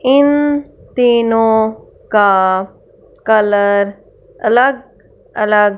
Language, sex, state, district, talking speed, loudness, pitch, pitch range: Hindi, female, Punjab, Fazilka, 60 wpm, -13 LUFS, 220 Hz, 205-265 Hz